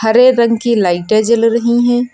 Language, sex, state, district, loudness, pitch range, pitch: Hindi, female, Uttar Pradesh, Lucknow, -12 LUFS, 220-240 Hz, 235 Hz